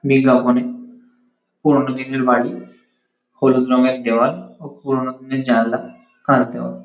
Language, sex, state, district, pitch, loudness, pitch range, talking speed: Bengali, male, West Bengal, Kolkata, 130 Hz, -18 LUFS, 125-145 Hz, 115 wpm